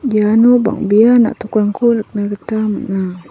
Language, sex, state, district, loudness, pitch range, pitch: Garo, female, Meghalaya, South Garo Hills, -14 LUFS, 205-235 Hz, 215 Hz